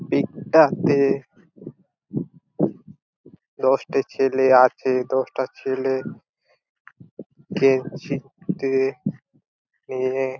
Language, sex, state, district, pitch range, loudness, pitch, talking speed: Bengali, male, West Bengal, Purulia, 130-140 Hz, -22 LUFS, 135 Hz, 60 wpm